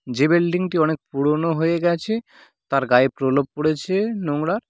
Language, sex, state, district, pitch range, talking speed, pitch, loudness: Bengali, male, West Bengal, Cooch Behar, 140-175 Hz, 155 wpm, 155 Hz, -21 LUFS